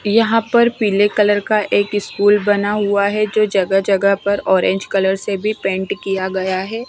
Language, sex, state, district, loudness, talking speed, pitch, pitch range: Hindi, female, Punjab, Fazilka, -16 LUFS, 190 wpm, 205 Hz, 195-210 Hz